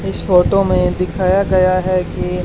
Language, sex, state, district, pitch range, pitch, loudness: Hindi, male, Haryana, Charkhi Dadri, 180-185 Hz, 185 Hz, -15 LUFS